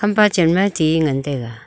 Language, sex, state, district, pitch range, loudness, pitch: Wancho, female, Arunachal Pradesh, Longding, 140-195 Hz, -17 LUFS, 160 Hz